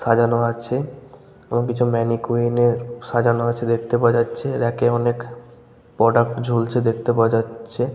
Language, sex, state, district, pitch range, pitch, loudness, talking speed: Bengali, male, West Bengal, Malda, 115-120 Hz, 120 Hz, -20 LUFS, 150 wpm